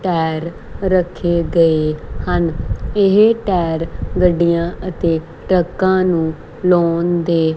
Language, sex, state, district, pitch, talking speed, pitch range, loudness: Punjabi, female, Punjab, Kapurthala, 170 Hz, 95 wpm, 165-185 Hz, -17 LUFS